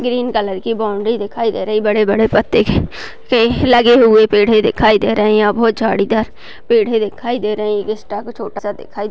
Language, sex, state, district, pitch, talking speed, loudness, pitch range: Hindi, female, Chhattisgarh, Kabirdham, 215 Hz, 225 wpm, -14 LUFS, 210-230 Hz